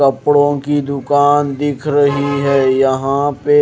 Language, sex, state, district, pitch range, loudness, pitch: Hindi, male, Himachal Pradesh, Shimla, 140-145 Hz, -14 LUFS, 140 Hz